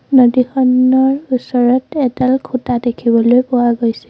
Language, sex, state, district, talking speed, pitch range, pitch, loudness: Assamese, female, Assam, Sonitpur, 100 wpm, 245-260 Hz, 255 Hz, -13 LUFS